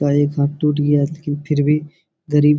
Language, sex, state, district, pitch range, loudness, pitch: Hindi, male, Bihar, Supaul, 145-150 Hz, -18 LUFS, 145 Hz